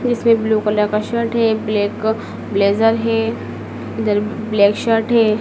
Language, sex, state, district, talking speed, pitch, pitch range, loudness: Hindi, female, Madhya Pradesh, Dhar, 135 wpm, 220 Hz, 205-225 Hz, -17 LUFS